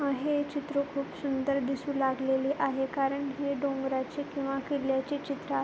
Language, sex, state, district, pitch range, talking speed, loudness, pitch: Marathi, female, Maharashtra, Pune, 270-285 Hz, 150 wpm, -31 LUFS, 275 Hz